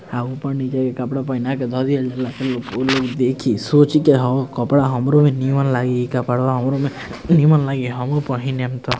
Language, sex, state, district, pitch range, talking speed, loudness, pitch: Bhojpuri, male, Bihar, Gopalganj, 125-140 Hz, 215 wpm, -18 LUFS, 130 Hz